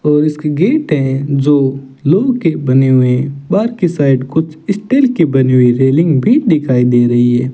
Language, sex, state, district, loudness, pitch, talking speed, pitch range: Hindi, male, Rajasthan, Bikaner, -12 LUFS, 145 Hz, 175 wpm, 130-165 Hz